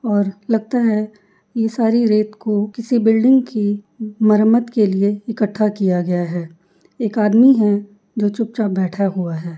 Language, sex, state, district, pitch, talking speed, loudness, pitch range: Hindi, female, Uttar Pradesh, Jyotiba Phule Nagar, 215 Hz, 155 wpm, -17 LUFS, 200-225 Hz